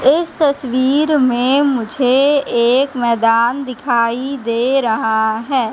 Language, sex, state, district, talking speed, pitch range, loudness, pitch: Hindi, female, Madhya Pradesh, Katni, 105 wpm, 235-275 Hz, -15 LUFS, 255 Hz